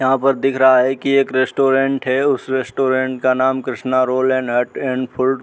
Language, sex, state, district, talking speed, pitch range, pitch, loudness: Hindi, male, Uttar Pradesh, Muzaffarnagar, 220 wpm, 130-135 Hz, 130 Hz, -17 LUFS